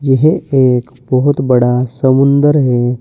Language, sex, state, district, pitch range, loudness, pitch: Hindi, male, Uttar Pradesh, Saharanpur, 125-140 Hz, -12 LUFS, 130 Hz